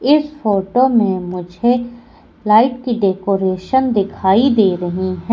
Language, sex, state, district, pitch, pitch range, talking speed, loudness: Hindi, female, Madhya Pradesh, Katni, 210 Hz, 190-245 Hz, 125 wpm, -16 LUFS